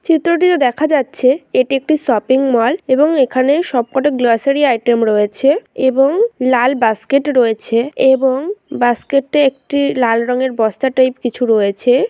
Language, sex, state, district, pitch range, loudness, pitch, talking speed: Bengali, female, West Bengal, North 24 Parganas, 245-285 Hz, -14 LUFS, 260 Hz, 130 wpm